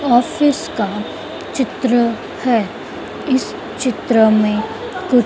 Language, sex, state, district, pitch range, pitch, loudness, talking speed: Hindi, female, Madhya Pradesh, Dhar, 225-265 Hz, 245 Hz, -17 LUFS, 90 wpm